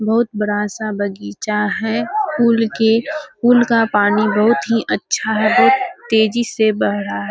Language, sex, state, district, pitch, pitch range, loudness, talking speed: Hindi, female, Bihar, Kishanganj, 220 Hz, 210-235 Hz, -16 LUFS, 165 wpm